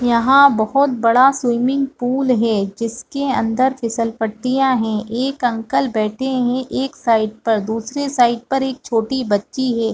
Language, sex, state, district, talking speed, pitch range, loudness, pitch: Hindi, female, Chhattisgarh, Bastar, 165 wpm, 225-265 Hz, -17 LUFS, 245 Hz